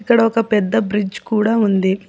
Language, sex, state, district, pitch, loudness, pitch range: Telugu, female, Telangana, Hyderabad, 215 Hz, -17 LUFS, 200-225 Hz